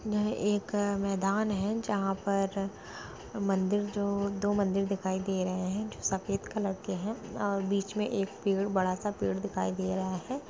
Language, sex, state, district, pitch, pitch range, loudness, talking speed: Hindi, female, Jharkhand, Sahebganj, 200 Hz, 195-205 Hz, -31 LUFS, 175 wpm